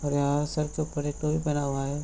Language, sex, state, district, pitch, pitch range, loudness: Hindi, male, Bihar, Madhepura, 145 Hz, 145-150 Hz, -28 LUFS